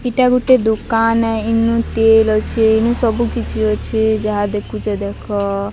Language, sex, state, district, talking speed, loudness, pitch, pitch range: Odia, female, Odisha, Sambalpur, 145 wpm, -16 LUFS, 220 Hz, 215-230 Hz